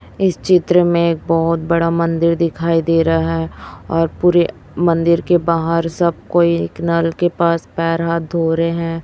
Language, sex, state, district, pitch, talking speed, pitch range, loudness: Hindi, female, Chhattisgarh, Raipur, 170 Hz, 165 wpm, 165-170 Hz, -16 LUFS